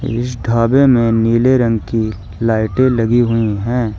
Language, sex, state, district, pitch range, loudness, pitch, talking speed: Hindi, male, Uttar Pradesh, Shamli, 110-120 Hz, -14 LUFS, 115 Hz, 150 wpm